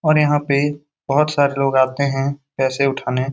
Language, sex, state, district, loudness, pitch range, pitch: Hindi, male, Bihar, Lakhisarai, -18 LUFS, 135-145 Hz, 140 Hz